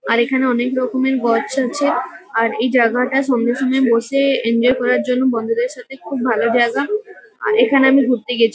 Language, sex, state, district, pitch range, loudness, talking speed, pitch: Bengali, female, West Bengal, Kolkata, 235-265 Hz, -17 LUFS, 175 wpm, 250 Hz